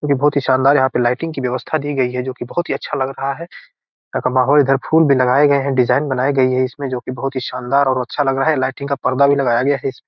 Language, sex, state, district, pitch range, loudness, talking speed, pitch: Hindi, male, Bihar, Gopalganj, 130-140 Hz, -17 LUFS, 300 wpm, 135 Hz